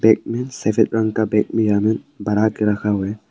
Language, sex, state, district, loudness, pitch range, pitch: Hindi, male, Arunachal Pradesh, Papum Pare, -19 LUFS, 105-110 Hz, 110 Hz